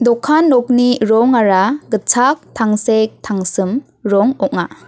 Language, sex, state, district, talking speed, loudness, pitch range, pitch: Garo, female, Meghalaya, West Garo Hills, 100 wpm, -14 LUFS, 210-250 Hz, 235 Hz